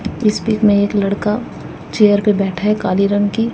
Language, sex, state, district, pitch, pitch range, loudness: Hindi, female, Haryana, Jhajjar, 205 Hz, 200-215 Hz, -15 LUFS